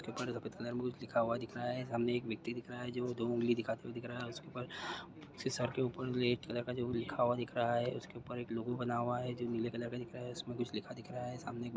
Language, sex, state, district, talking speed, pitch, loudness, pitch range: Hindi, male, Bihar, Kishanganj, 310 wpm, 120 Hz, -39 LUFS, 120-125 Hz